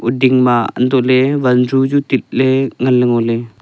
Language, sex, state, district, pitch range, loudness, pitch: Wancho, male, Arunachal Pradesh, Longding, 120-130 Hz, -13 LUFS, 130 Hz